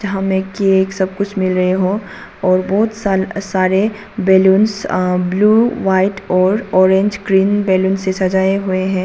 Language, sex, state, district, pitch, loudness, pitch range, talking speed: Hindi, female, Arunachal Pradesh, Papum Pare, 190 Hz, -15 LUFS, 190-200 Hz, 150 wpm